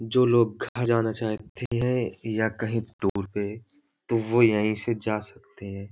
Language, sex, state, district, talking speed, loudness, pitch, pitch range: Hindi, male, Uttar Pradesh, Hamirpur, 170 wpm, -26 LUFS, 110 Hz, 105-120 Hz